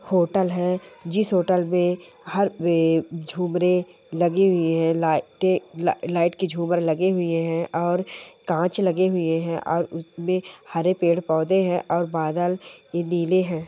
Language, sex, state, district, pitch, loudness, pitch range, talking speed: Hindi, male, Andhra Pradesh, Guntur, 175 Hz, -23 LUFS, 165-180 Hz, 150 wpm